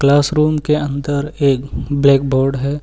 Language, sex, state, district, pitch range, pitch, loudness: Hindi, male, Uttar Pradesh, Lucknow, 140-150 Hz, 140 Hz, -16 LUFS